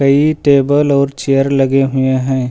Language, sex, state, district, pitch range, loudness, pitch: Hindi, male, Uttar Pradesh, Lucknow, 135-140 Hz, -13 LUFS, 135 Hz